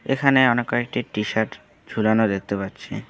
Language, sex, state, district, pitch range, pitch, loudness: Bengali, male, West Bengal, Alipurduar, 105-120 Hz, 110 Hz, -22 LUFS